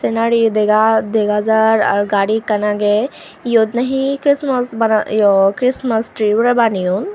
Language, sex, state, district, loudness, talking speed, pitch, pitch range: Chakma, female, Tripura, Unakoti, -15 LUFS, 160 wpm, 220 Hz, 210-240 Hz